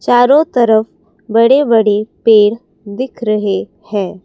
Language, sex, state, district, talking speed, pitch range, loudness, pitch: Hindi, female, Assam, Kamrup Metropolitan, 115 wpm, 210-245 Hz, -12 LUFS, 220 Hz